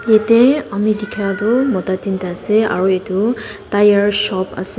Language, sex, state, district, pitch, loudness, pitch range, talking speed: Nagamese, female, Nagaland, Dimapur, 205 Hz, -16 LUFS, 190-220 Hz, 150 wpm